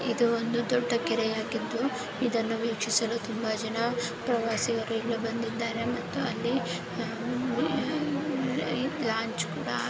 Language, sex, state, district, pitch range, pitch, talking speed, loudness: Kannada, female, Karnataka, Shimoga, 225-240 Hz, 230 Hz, 105 wpm, -29 LUFS